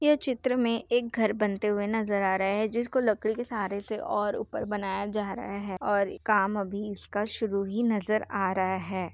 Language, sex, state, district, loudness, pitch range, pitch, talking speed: Hindi, female, Bihar, Saharsa, -29 LUFS, 200-225 Hz, 210 Hz, 210 wpm